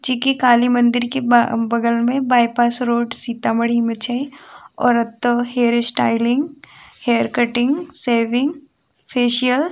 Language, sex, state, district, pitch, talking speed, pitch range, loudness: Maithili, female, Bihar, Sitamarhi, 240 Hz, 140 wpm, 235-255 Hz, -17 LUFS